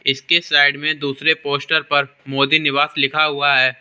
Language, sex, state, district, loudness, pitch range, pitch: Hindi, male, Uttar Pradesh, Lalitpur, -16 LUFS, 140-155 Hz, 145 Hz